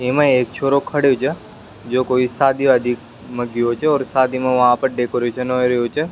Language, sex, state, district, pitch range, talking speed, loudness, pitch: Rajasthani, male, Rajasthan, Nagaur, 120-135 Hz, 205 wpm, -18 LUFS, 125 Hz